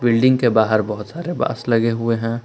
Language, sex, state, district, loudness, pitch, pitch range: Hindi, male, Jharkhand, Palamu, -18 LUFS, 115 Hz, 115-130 Hz